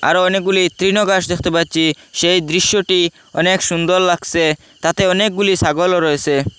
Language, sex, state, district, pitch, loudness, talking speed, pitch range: Bengali, male, Assam, Hailakandi, 180 Hz, -15 LUFS, 135 wpm, 165-185 Hz